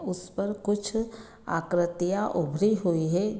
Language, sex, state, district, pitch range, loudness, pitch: Hindi, female, Bihar, Gopalganj, 175-210 Hz, -28 LUFS, 200 Hz